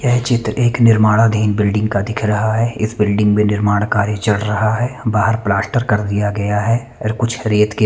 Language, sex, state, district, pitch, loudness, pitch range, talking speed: Hindi, male, Chandigarh, Chandigarh, 110 Hz, -16 LUFS, 105-115 Hz, 205 wpm